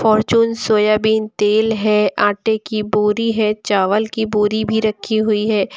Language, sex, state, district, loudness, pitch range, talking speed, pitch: Hindi, female, Uttar Pradesh, Lucknow, -16 LUFS, 210-220 Hz, 165 wpm, 215 Hz